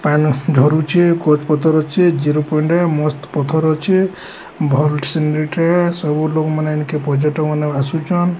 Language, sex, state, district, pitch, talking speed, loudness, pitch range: Odia, male, Odisha, Sambalpur, 155 Hz, 120 wpm, -16 LUFS, 150-170 Hz